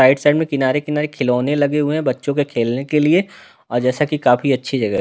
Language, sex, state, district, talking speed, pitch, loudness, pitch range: Hindi, male, Delhi, New Delhi, 240 wpm, 145 Hz, -18 LUFS, 130-150 Hz